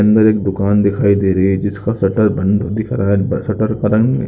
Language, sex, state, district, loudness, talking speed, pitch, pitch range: Hindi, male, Uttarakhand, Uttarkashi, -15 LUFS, 250 wpm, 105 Hz, 100-110 Hz